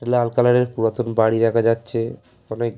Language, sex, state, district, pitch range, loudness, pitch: Bengali, male, West Bengal, Paschim Medinipur, 115-120 Hz, -19 LUFS, 115 Hz